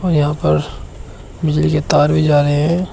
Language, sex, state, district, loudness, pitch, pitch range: Hindi, male, Uttar Pradesh, Shamli, -15 LUFS, 150 Hz, 145-155 Hz